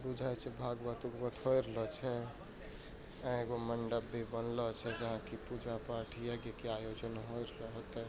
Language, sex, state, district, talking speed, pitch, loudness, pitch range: Hindi, male, Bihar, Bhagalpur, 155 wpm, 115 Hz, -41 LUFS, 115-120 Hz